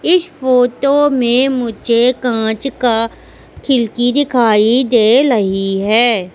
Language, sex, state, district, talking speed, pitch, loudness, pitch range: Hindi, female, Madhya Pradesh, Katni, 105 wpm, 240 Hz, -13 LUFS, 225-260 Hz